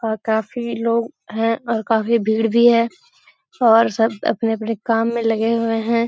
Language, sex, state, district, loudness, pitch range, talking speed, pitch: Hindi, female, Bihar, Jahanabad, -18 LUFS, 225-235 Hz, 170 wpm, 230 Hz